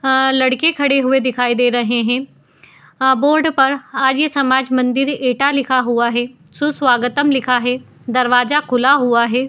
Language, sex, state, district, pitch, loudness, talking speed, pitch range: Hindi, female, Uttar Pradesh, Etah, 260 Hz, -15 LUFS, 170 wpm, 245-275 Hz